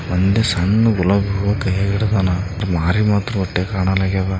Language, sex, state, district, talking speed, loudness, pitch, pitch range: Kannada, male, Karnataka, Bijapur, 125 wpm, -18 LUFS, 95 Hz, 95-100 Hz